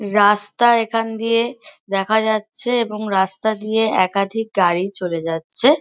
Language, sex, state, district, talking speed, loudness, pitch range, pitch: Bengali, female, West Bengal, Kolkata, 125 wpm, -18 LUFS, 195-225 Hz, 215 Hz